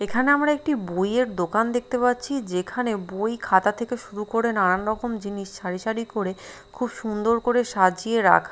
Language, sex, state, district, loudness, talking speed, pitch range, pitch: Bengali, female, Bihar, Katihar, -24 LUFS, 170 wpm, 195-245 Hz, 220 Hz